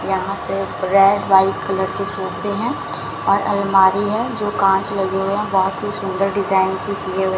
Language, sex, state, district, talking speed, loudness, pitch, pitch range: Hindi, female, Rajasthan, Bikaner, 185 wpm, -18 LUFS, 195 Hz, 190-195 Hz